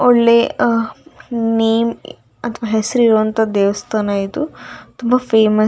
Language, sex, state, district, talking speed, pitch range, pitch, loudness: Kannada, female, Karnataka, Dakshina Kannada, 105 wpm, 220-235 Hz, 225 Hz, -16 LUFS